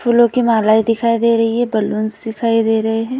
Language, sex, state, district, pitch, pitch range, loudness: Hindi, female, Uttar Pradesh, Budaun, 225 Hz, 220-235 Hz, -15 LUFS